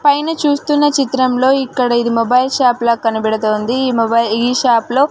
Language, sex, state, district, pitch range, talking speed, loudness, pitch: Telugu, female, Andhra Pradesh, Sri Satya Sai, 230-275 Hz, 175 wpm, -14 LUFS, 250 Hz